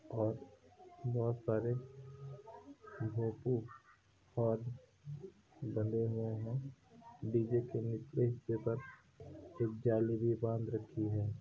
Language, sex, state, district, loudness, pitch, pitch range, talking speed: Hindi, male, Uttar Pradesh, Hamirpur, -38 LUFS, 115 Hz, 110-130 Hz, 105 wpm